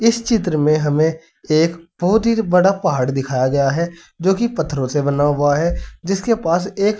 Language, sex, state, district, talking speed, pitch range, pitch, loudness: Hindi, male, Uttar Pradesh, Saharanpur, 190 wpm, 145-195 Hz, 170 Hz, -18 LUFS